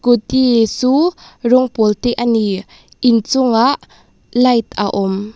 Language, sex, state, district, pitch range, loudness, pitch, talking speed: Mizo, female, Mizoram, Aizawl, 215-255 Hz, -15 LUFS, 240 Hz, 125 wpm